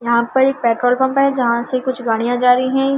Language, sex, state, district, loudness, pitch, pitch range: Hindi, female, Delhi, New Delhi, -16 LUFS, 250 Hz, 235-265 Hz